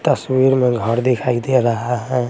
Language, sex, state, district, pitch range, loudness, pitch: Hindi, male, Bihar, Patna, 120-130 Hz, -17 LUFS, 125 Hz